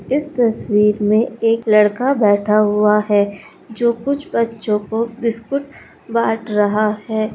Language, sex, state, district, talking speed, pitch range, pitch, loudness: Hindi, male, Bihar, Supaul, 130 wpm, 210-235 Hz, 220 Hz, -17 LUFS